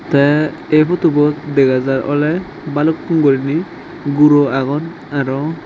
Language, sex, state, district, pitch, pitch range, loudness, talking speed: Chakma, male, Tripura, Dhalai, 145 Hz, 140-155 Hz, -15 LUFS, 105 wpm